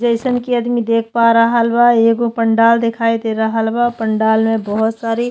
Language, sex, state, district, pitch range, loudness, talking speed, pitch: Bhojpuri, female, Uttar Pradesh, Deoria, 225-235 Hz, -14 LUFS, 205 wpm, 230 Hz